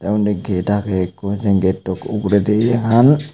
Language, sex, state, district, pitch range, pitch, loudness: Chakma, male, Tripura, Unakoti, 95-110 Hz, 105 Hz, -17 LUFS